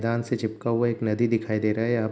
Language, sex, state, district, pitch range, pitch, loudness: Hindi, male, Bihar, Darbhanga, 110-120 Hz, 115 Hz, -25 LUFS